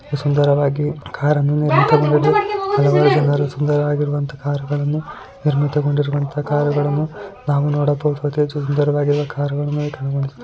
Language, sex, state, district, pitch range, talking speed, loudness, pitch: Kannada, male, Karnataka, Mysore, 145-150 Hz, 105 wpm, -18 LUFS, 145 Hz